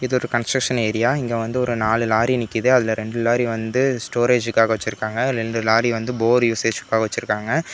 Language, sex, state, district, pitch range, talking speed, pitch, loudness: Tamil, male, Tamil Nadu, Namakkal, 110-125 Hz, 165 wpm, 115 Hz, -20 LUFS